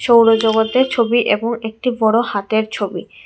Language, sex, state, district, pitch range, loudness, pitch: Bengali, female, Tripura, West Tripura, 220-235 Hz, -16 LUFS, 225 Hz